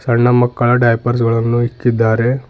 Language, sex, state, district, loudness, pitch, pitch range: Kannada, male, Karnataka, Bidar, -14 LUFS, 120 Hz, 115-125 Hz